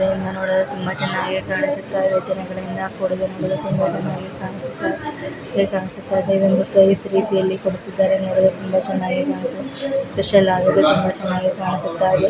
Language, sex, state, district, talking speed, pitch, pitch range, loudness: Kannada, female, Karnataka, Chamarajanagar, 40 wpm, 190 Hz, 185-195 Hz, -19 LUFS